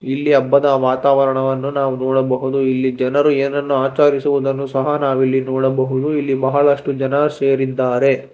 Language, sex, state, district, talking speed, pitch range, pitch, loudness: Kannada, male, Karnataka, Bangalore, 120 wpm, 130-140 Hz, 135 Hz, -16 LUFS